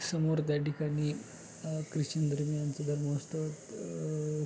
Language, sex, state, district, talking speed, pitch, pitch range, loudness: Marathi, male, Maharashtra, Pune, 95 wpm, 150 Hz, 150-155 Hz, -34 LUFS